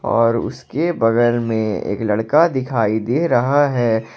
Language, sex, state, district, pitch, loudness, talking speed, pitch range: Hindi, male, Jharkhand, Ranchi, 115 Hz, -18 LUFS, 145 wpm, 110-130 Hz